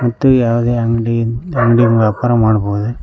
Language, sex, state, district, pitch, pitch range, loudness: Kannada, male, Karnataka, Koppal, 115 Hz, 115-120 Hz, -14 LUFS